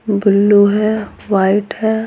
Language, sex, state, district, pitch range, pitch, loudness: Hindi, female, Bihar, Patna, 200-215 Hz, 205 Hz, -14 LUFS